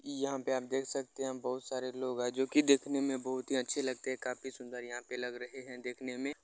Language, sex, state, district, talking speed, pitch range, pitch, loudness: Maithili, male, Bihar, Begusarai, 270 wpm, 125-135 Hz, 130 Hz, -36 LUFS